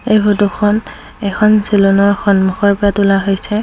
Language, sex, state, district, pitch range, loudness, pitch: Assamese, female, Assam, Sonitpur, 200-210 Hz, -13 LUFS, 200 Hz